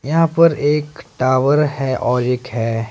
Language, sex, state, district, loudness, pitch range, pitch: Hindi, male, Himachal Pradesh, Shimla, -17 LUFS, 125-150 Hz, 135 Hz